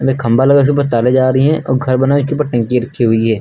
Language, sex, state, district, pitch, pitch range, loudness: Hindi, male, Uttar Pradesh, Lucknow, 130 Hz, 120-140 Hz, -13 LUFS